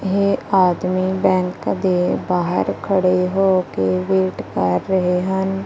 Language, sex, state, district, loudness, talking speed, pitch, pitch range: Punjabi, female, Punjab, Kapurthala, -18 LUFS, 125 wpm, 185 Hz, 180-190 Hz